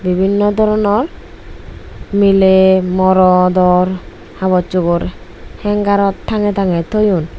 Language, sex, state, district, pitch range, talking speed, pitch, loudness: Chakma, female, Tripura, West Tripura, 180-205 Hz, 75 wpm, 190 Hz, -13 LUFS